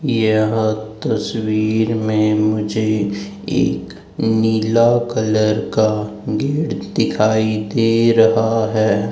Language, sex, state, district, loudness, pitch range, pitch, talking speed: Hindi, male, Madhya Pradesh, Dhar, -17 LUFS, 110-115 Hz, 110 Hz, 85 wpm